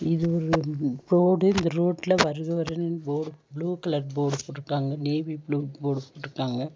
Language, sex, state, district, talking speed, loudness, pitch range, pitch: Tamil, female, Tamil Nadu, Nilgiris, 140 wpm, -26 LUFS, 145-170 Hz, 155 Hz